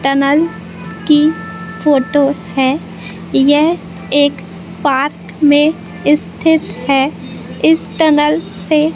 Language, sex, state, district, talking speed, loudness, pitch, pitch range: Hindi, female, Madhya Pradesh, Katni, 85 wpm, -14 LUFS, 290 Hz, 270-305 Hz